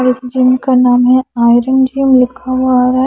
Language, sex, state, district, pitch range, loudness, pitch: Hindi, female, Himachal Pradesh, Shimla, 250-260 Hz, -11 LUFS, 255 Hz